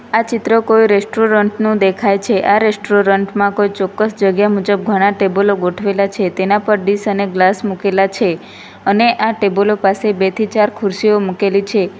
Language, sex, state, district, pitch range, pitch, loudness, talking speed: Gujarati, female, Gujarat, Valsad, 195-215 Hz, 205 Hz, -14 LUFS, 175 wpm